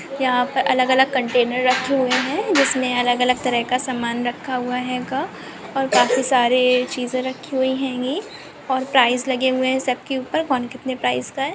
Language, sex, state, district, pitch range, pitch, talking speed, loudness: Hindi, female, Uttar Pradesh, Muzaffarnagar, 250-265 Hz, 255 Hz, 175 wpm, -20 LUFS